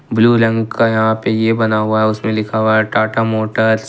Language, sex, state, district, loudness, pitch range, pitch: Hindi, male, Jharkhand, Ranchi, -14 LUFS, 110-115 Hz, 110 Hz